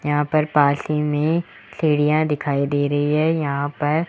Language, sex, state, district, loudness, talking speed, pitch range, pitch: Hindi, male, Rajasthan, Jaipur, -20 LUFS, 175 wpm, 145-155 Hz, 150 Hz